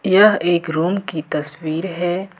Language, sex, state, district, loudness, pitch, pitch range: Hindi, female, Jharkhand, Ranchi, -19 LUFS, 175 Hz, 160-190 Hz